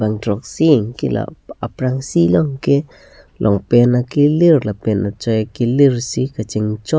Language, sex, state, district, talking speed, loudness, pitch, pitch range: Karbi, male, Assam, Karbi Anglong, 110 wpm, -16 LUFS, 125 Hz, 110-140 Hz